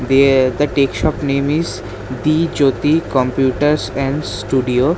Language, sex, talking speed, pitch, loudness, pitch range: English, male, 130 wpm, 135 Hz, -16 LUFS, 130-150 Hz